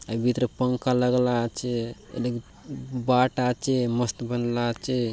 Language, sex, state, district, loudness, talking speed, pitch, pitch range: Halbi, male, Chhattisgarh, Bastar, -26 LUFS, 130 wpm, 125 Hz, 120-125 Hz